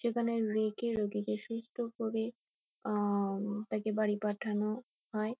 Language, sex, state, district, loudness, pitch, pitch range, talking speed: Bengali, female, West Bengal, Kolkata, -35 LUFS, 215 Hz, 210-230 Hz, 110 wpm